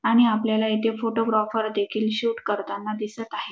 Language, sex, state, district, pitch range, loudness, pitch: Marathi, female, Maharashtra, Dhule, 215-225 Hz, -24 LUFS, 220 Hz